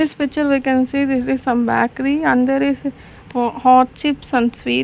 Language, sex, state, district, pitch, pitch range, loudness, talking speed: English, female, Chandigarh, Chandigarh, 265 Hz, 250-280 Hz, -17 LUFS, 210 wpm